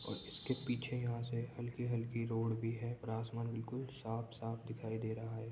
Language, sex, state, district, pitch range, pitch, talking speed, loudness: Hindi, male, Uttar Pradesh, Jyotiba Phule Nagar, 115-120 Hz, 115 Hz, 195 wpm, -42 LUFS